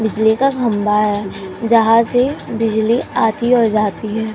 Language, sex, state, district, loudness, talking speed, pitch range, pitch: Hindi, female, Uttar Pradesh, Jyotiba Phule Nagar, -15 LUFS, 150 wpm, 210-235 Hz, 220 Hz